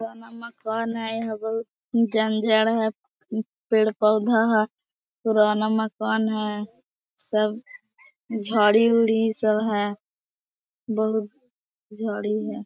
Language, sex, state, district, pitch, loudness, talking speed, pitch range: Hindi, female, Bihar, Gaya, 220 Hz, -23 LUFS, 95 wpm, 215-225 Hz